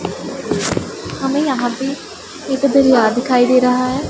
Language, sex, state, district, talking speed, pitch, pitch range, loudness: Hindi, female, Punjab, Pathankot, 130 wpm, 260 Hz, 250-275 Hz, -16 LUFS